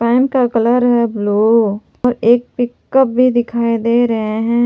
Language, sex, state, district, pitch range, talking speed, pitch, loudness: Hindi, female, Jharkhand, Palamu, 230-245 Hz, 165 wpm, 235 Hz, -14 LUFS